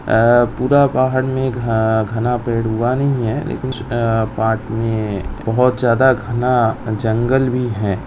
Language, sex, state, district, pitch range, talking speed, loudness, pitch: Hindi, male, Bihar, Lakhisarai, 110-125 Hz, 135 wpm, -17 LUFS, 120 Hz